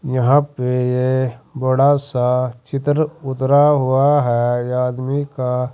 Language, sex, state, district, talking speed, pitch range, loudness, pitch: Hindi, male, Uttar Pradesh, Saharanpur, 115 wpm, 125-140 Hz, -17 LUFS, 130 Hz